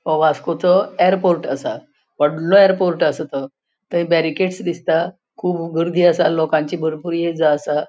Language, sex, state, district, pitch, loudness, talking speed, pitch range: Konkani, female, Goa, North and South Goa, 170 Hz, -18 LUFS, 145 wpm, 155-180 Hz